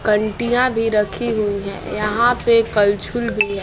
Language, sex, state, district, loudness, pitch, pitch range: Hindi, female, Bihar, West Champaran, -18 LUFS, 215 Hz, 210-235 Hz